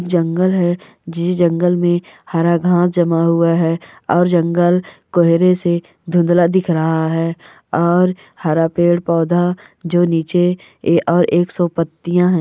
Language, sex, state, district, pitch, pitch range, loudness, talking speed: Hindi, female, Andhra Pradesh, Chittoor, 175 Hz, 170-175 Hz, -16 LUFS, 140 wpm